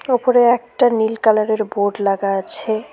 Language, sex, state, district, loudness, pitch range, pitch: Bengali, female, West Bengal, Cooch Behar, -17 LUFS, 205-245 Hz, 220 Hz